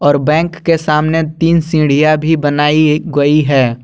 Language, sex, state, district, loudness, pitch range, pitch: Hindi, male, Jharkhand, Garhwa, -12 LUFS, 145-160 Hz, 155 Hz